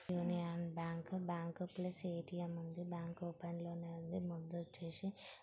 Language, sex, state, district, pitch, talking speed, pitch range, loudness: Telugu, female, Andhra Pradesh, Srikakulam, 170 Hz, 155 wpm, 170-180 Hz, -45 LUFS